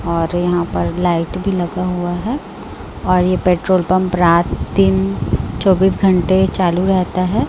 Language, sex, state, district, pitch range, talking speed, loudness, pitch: Hindi, female, Chhattisgarh, Raipur, 170-185 Hz, 150 wpm, -16 LUFS, 180 Hz